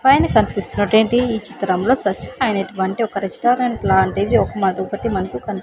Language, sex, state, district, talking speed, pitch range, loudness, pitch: Telugu, female, Andhra Pradesh, Sri Satya Sai, 130 wpm, 190-235 Hz, -18 LUFS, 205 Hz